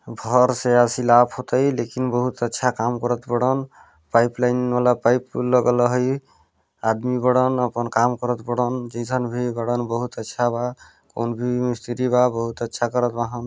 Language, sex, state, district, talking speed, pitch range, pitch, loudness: Hindi, male, Chhattisgarh, Balrampur, 165 wpm, 120-125 Hz, 125 Hz, -21 LUFS